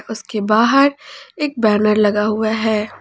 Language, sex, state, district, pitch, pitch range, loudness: Hindi, female, Jharkhand, Ranchi, 220 Hz, 210-275 Hz, -16 LUFS